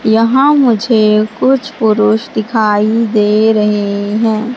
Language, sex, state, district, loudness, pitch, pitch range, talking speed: Hindi, female, Madhya Pradesh, Katni, -11 LUFS, 220 Hz, 210-230 Hz, 105 wpm